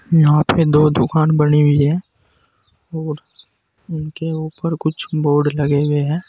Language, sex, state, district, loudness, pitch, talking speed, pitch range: Hindi, male, Uttar Pradesh, Saharanpur, -17 LUFS, 150 Hz, 145 wpm, 145-160 Hz